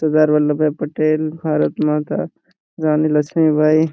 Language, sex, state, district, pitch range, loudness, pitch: Hindi, male, Jharkhand, Jamtara, 150-155 Hz, -17 LUFS, 155 Hz